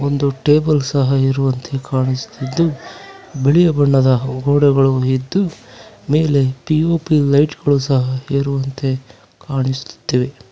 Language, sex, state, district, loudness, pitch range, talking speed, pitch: Kannada, male, Karnataka, Bangalore, -16 LUFS, 130-145 Hz, 90 wpm, 135 Hz